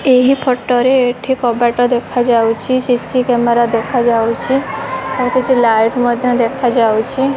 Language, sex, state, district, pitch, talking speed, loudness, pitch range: Odia, female, Odisha, Khordha, 245 Hz, 115 wpm, -14 LUFS, 235-255 Hz